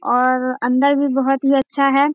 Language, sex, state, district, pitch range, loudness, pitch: Hindi, female, Bihar, Bhagalpur, 255-275 Hz, -17 LUFS, 270 Hz